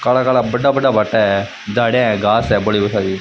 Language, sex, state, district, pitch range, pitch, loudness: Rajasthani, male, Rajasthan, Churu, 100-125 Hz, 110 Hz, -15 LUFS